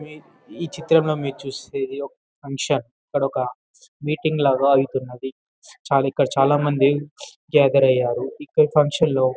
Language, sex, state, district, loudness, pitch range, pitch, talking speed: Telugu, male, Telangana, Karimnagar, -20 LUFS, 135-155 Hz, 140 Hz, 130 wpm